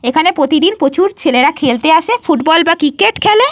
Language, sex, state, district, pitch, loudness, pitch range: Bengali, female, Jharkhand, Jamtara, 320 Hz, -11 LUFS, 290-375 Hz